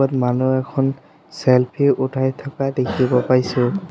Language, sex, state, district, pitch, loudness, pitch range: Assamese, male, Assam, Sonitpur, 130 Hz, -19 LUFS, 125-135 Hz